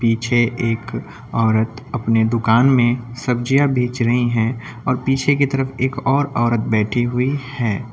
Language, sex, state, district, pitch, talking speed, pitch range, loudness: Hindi, male, Uttar Pradesh, Lucknow, 120 Hz, 150 wpm, 115-130 Hz, -18 LUFS